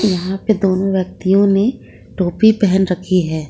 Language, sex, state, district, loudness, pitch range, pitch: Hindi, female, Jharkhand, Ranchi, -15 LUFS, 185-200 Hz, 190 Hz